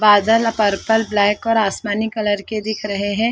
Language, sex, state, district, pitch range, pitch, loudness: Hindi, female, Chhattisgarh, Balrampur, 205-225 Hz, 215 Hz, -18 LUFS